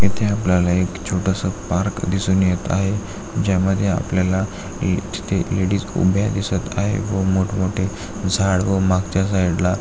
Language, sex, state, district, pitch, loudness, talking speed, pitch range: Marathi, male, Maharashtra, Aurangabad, 95 Hz, -20 LUFS, 145 wpm, 95-100 Hz